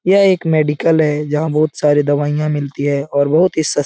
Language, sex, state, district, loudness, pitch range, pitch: Hindi, male, Bihar, Jahanabad, -15 LUFS, 145-160 Hz, 150 Hz